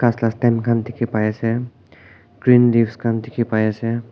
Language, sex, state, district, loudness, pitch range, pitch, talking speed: Nagamese, male, Nagaland, Kohima, -19 LUFS, 110-120 Hz, 115 Hz, 145 wpm